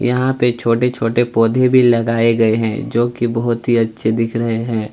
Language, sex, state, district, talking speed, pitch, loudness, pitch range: Hindi, male, Chhattisgarh, Kabirdham, 220 wpm, 115 Hz, -16 LUFS, 115-120 Hz